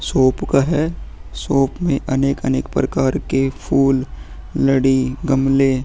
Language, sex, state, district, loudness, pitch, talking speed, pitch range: Hindi, female, Bihar, Vaishali, -18 LUFS, 135 Hz, 125 wpm, 130-140 Hz